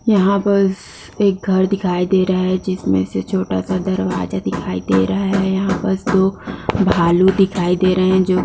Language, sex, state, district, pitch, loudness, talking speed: Hindi, female, Bihar, Bhagalpur, 185 Hz, -17 LUFS, 170 wpm